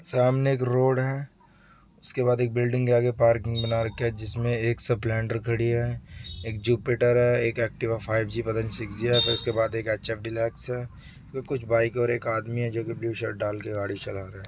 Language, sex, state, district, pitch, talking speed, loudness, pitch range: Hindi, male, Bihar, Kishanganj, 115 Hz, 220 wpm, -26 LUFS, 115-125 Hz